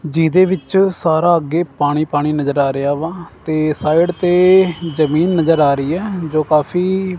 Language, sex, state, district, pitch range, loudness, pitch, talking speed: Punjabi, male, Punjab, Kapurthala, 150-180 Hz, -15 LUFS, 165 Hz, 165 wpm